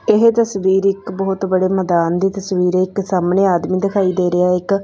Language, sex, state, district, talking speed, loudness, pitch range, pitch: Punjabi, female, Punjab, Fazilka, 225 wpm, -16 LUFS, 180-195 Hz, 190 Hz